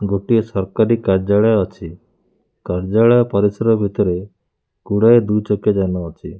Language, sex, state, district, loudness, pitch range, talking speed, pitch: Odia, male, Odisha, Khordha, -16 LUFS, 95-110 Hz, 115 wpm, 100 Hz